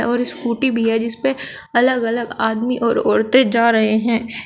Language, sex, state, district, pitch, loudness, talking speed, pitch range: Hindi, female, Uttar Pradesh, Shamli, 235 Hz, -16 LUFS, 175 wpm, 230-245 Hz